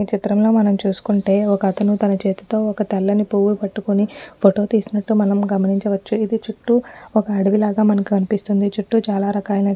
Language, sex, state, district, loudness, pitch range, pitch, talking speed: Telugu, female, Telangana, Nalgonda, -18 LUFS, 200-215 Hz, 205 Hz, 140 wpm